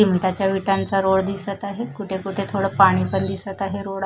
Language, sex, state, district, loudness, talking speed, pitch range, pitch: Marathi, female, Maharashtra, Mumbai Suburban, -21 LUFS, 205 wpm, 190-200 Hz, 195 Hz